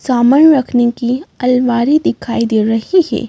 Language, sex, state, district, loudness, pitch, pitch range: Hindi, female, Madhya Pradesh, Bhopal, -13 LUFS, 245 Hz, 235-270 Hz